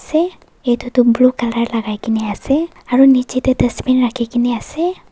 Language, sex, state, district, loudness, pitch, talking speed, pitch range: Nagamese, female, Nagaland, Dimapur, -16 LUFS, 245 Hz, 175 wpm, 235-270 Hz